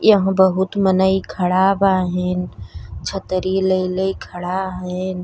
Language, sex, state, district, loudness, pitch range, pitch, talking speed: Bhojpuri, female, Uttar Pradesh, Deoria, -19 LUFS, 180-190 Hz, 185 Hz, 115 wpm